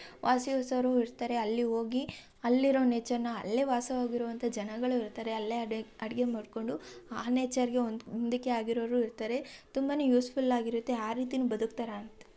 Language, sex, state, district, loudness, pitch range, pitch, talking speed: Kannada, female, Karnataka, Shimoga, -32 LUFS, 225-250 Hz, 240 Hz, 130 wpm